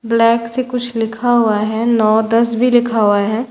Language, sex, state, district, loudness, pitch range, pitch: Hindi, female, Bihar, Katihar, -15 LUFS, 220-240 Hz, 230 Hz